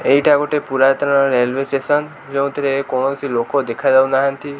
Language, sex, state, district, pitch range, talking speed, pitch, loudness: Odia, male, Odisha, Khordha, 135-145 Hz, 130 wpm, 140 Hz, -17 LUFS